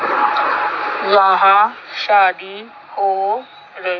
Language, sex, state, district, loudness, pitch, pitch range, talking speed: Hindi, female, Chandigarh, Chandigarh, -15 LUFS, 195 Hz, 190-200 Hz, 60 wpm